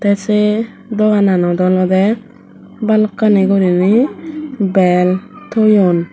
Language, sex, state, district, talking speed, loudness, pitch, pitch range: Chakma, female, Tripura, Dhalai, 80 wpm, -13 LUFS, 205 Hz, 185-215 Hz